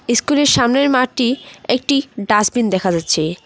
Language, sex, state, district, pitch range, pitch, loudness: Bengali, female, West Bengal, Cooch Behar, 195-270 Hz, 240 Hz, -16 LUFS